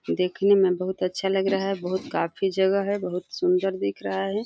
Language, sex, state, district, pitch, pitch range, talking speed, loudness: Hindi, female, Uttar Pradesh, Deoria, 190 Hz, 180-195 Hz, 215 wpm, -24 LUFS